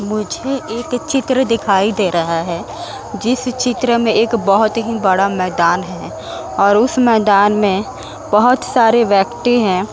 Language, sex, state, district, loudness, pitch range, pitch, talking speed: Hindi, female, Uttar Pradesh, Muzaffarnagar, -15 LUFS, 195-240 Hz, 215 Hz, 145 wpm